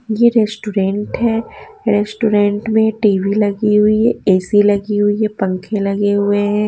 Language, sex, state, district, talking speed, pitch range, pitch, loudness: Hindi, female, Haryana, Jhajjar, 155 wpm, 205-215 Hz, 210 Hz, -15 LUFS